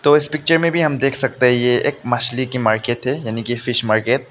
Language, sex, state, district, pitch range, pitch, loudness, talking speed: Hindi, male, Meghalaya, West Garo Hills, 120-145 Hz, 125 Hz, -17 LUFS, 265 wpm